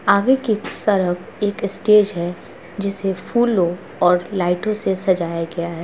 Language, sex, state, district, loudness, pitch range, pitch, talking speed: Hindi, male, Bihar, Gopalganj, -19 LUFS, 175-205 Hz, 190 Hz, 145 wpm